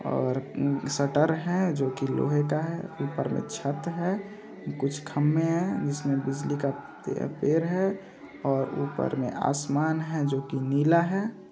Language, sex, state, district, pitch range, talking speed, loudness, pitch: Hindi, male, Bihar, Samastipur, 140-170 Hz, 150 wpm, -28 LUFS, 145 Hz